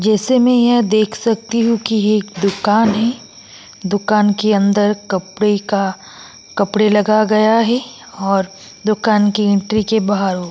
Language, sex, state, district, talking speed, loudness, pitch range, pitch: Hindi, female, Maharashtra, Aurangabad, 160 wpm, -15 LUFS, 200-220 Hz, 210 Hz